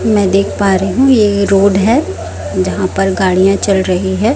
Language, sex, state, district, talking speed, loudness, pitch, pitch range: Hindi, female, Chhattisgarh, Raipur, 190 wpm, -12 LUFS, 195 Hz, 180-200 Hz